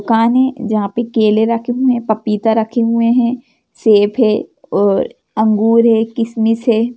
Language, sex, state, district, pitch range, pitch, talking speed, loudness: Hindi, female, Jharkhand, Jamtara, 220-235 Hz, 230 Hz, 170 wpm, -14 LUFS